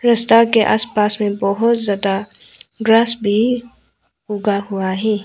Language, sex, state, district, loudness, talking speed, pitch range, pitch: Hindi, female, Arunachal Pradesh, Lower Dibang Valley, -16 LUFS, 135 wpm, 205-230 Hz, 215 Hz